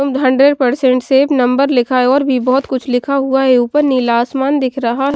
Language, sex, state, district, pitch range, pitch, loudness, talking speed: Hindi, female, Haryana, Jhajjar, 250-275 Hz, 265 Hz, -13 LUFS, 220 wpm